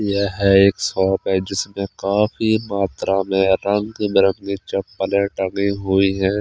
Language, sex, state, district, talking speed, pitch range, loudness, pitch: Hindi, male, Chandigarh, Chandigarh, 130 wpm, 95-100 Hz, -19 LUFS, 100 Hz